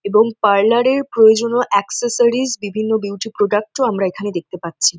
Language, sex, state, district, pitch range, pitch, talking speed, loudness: Bengali, female, West Bengal, North 24 Parganas, 200-240 Hz, 215 Hz, 155 wpm, -16 LUFS